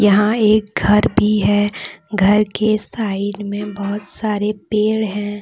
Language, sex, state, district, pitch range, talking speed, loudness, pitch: Hindi, female, Jharkhand, Deoghar, 205-215 Hz, 145 wpm, -17 LUFS, 210 Hz